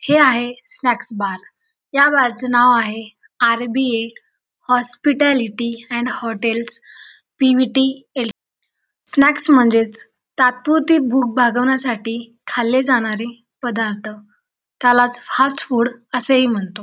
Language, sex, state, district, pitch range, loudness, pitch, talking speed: Marathi, female, Maharashtra, Dhule, 230-265 Hz, -17 LUFS, 245 Hz, 95 wpm